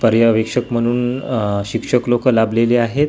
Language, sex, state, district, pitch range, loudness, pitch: Marathi, male, Maharashtra, Gondia, 115-125 Hz, -17 LUFS, 120 Hz